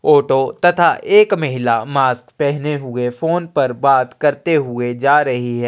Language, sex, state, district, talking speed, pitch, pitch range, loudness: Hindi, male, Chhattisgarh, Sukma, 160 wpm, 140 Hz, 125-160 Hz, -16 LUFS